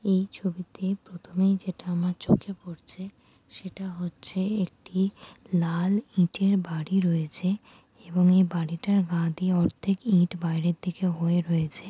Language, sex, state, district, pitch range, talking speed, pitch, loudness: Bengali, female, West Bengal, Jhargram, 175-195 Hz, 120 wpm, 185 Hz, -27 LUFS